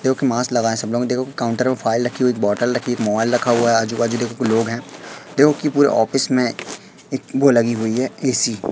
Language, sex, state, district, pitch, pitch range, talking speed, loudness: Hindi, male, Madhya Pradesh, Katni, 120 Hz, 115-130 Hz, 255 wpm, -18 LUFS